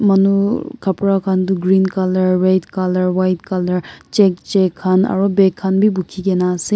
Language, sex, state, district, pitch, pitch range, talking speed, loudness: Nagamese, male, Nagaland, Kohima, 190 Hz, 185-195 Hz, 180 wpm, -16 LUFS